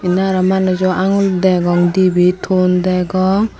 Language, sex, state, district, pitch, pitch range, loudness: Chakma, female, Tripura, Dhalai, 185 Hz, 180-190 Hz, -14 LUFS